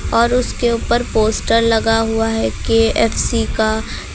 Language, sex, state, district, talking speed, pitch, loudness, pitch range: Hindi, female, Uttar Pradesh, Lucknow, 130 wpm, 225 Hz, -16 LUFS, 220-230 Hz